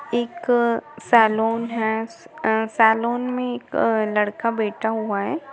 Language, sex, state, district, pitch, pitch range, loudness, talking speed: Hindi, female, Jharkhand, Sahebganj, 225 Hz, 220-240 Hz, -21 LUFS, 110 wpm